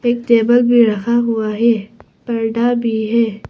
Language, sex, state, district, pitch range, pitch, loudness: Hindi, female, Arunachal Pradesh, Papum Pare, 225-240 Hz, 230 Hz, -15 LUFS